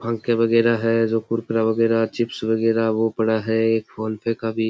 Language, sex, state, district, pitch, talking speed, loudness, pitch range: Rajasthani, male, Rajasthan, Churu, 115 Hz, 205 wpm, -21 LUFS, 110-115 Hz